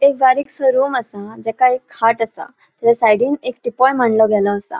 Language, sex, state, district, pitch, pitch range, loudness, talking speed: Konkani, female, Goa, North and South Goa, 240 Hz, 220-260 Hz, -16 LUFS, 185 wpm